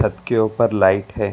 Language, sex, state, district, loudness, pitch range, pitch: Hindi, male, Karnataka, Bangalore, -18 LUFS, 95-110 Hz, 105 Hz